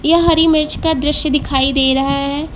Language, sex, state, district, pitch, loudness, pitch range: Hindi, female, Uttar Pradesh, Lucknow, 295 Hz, -14 LUFS, 275-320 Hz